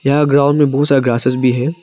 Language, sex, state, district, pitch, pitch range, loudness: Hindi, male, Arunachal Pradesh, Papum Pare, 140 Hz, 130-145 Hz, -13 LUFS